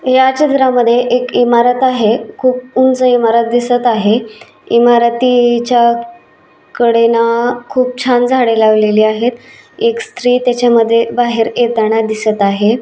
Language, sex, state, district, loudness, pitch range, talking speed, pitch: Marathi, female, Maharashtra, Solapur, -12 LUFS, 230-250 Hz, 110 wpm, 240 Hz